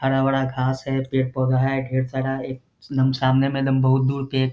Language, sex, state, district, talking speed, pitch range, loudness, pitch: Hindi, male, Bihar, Jahanabad, 210 wpm, 130-135 Hz, -22 LUFS, 130 Hz